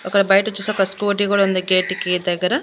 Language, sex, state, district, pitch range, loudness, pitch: Telugu, female, Andhra Pradesh, Annamaya, 180-205 Hz, -18 LUFS, 195 Hz